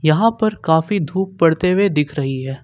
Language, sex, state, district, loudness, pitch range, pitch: Hindi, male, Jharkhand, Ranchi, -17 LUFS, 150-200 Hz, 165 Hz